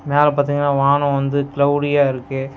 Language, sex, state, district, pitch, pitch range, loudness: Tamil, male, Tamil Nadu, Nilgiris, 140 Hz, 140-145 Hz, -17 LUFS